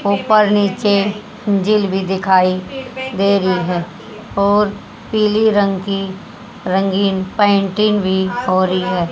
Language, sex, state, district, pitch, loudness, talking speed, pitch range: Hindi, female, Haryana, Charkhi Dadri, 200 Hz, -16 LUFS, 120 wpm, 190-210 Hz